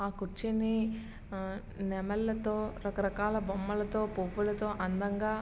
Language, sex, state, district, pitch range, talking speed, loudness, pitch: Telugu, male, Andhra Pradesh, Srikakulam, 195-215 Hz, 100 wpm, -34 LUFS, 205 Hz